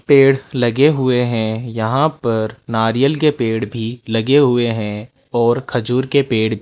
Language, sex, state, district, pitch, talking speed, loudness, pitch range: Hindi, male, Rajasthan, Jaipur, 120 Hz, 165 wpm, -16 LUFS, 110-135 Hz